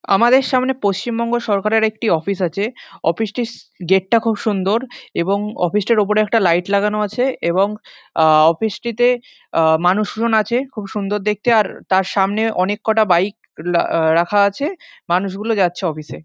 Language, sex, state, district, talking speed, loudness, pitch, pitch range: Bengali, male, West Bengal, Dakshin Dinajpur, 165 wpm, -18 LUFS, 210 Hz, 185-225 Hz